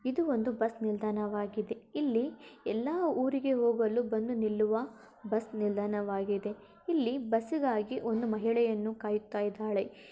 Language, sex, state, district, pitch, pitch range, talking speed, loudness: Kannada, female, Karnataka, Bellary, 225 Hz, 210-245 Hz, 100 wpm, -32 LUFS